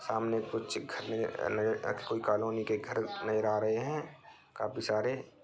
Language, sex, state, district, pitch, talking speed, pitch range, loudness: Bhojpuri, male, Bihar, Saran, 110 Hz, 155 wpm, 110-115 Hz, -34 LUFS